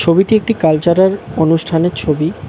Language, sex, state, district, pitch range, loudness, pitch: Bengali, male, West Bengal, Cooch Behar, 160-190 Hz, -13 LUFS, 170 Hz